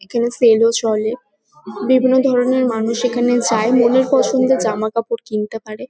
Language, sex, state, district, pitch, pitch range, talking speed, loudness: Bengali, female, West Bengal, Kolkata, 230 Hz, 220-250 Hz, 150 wpm, -16 LUFS